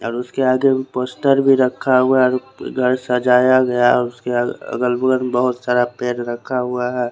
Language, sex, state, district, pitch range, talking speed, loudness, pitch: Hindi, male, Chandigarh, Chandigarh, 125-130 Hz, 175 wpm, -17 LUFS, 125 Hz